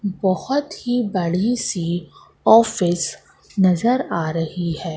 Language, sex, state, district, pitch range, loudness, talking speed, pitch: Hindi, female, Madhya Pradesh, Katni, 170-230 Hz, -20 LUFS, 110 wpm, 185 Hz